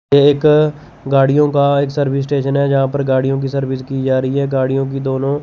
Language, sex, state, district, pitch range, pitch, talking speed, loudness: Hindi, male, Chandigarh, Chandigarh, 135-140 Hz, 140 Hz, 220 wpm, -15 LUFS